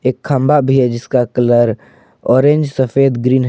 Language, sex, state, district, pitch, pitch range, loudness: Hindi, male, Jharkhand, Ranchi, 130 Hz, 125-135 Hz, -13 LUFS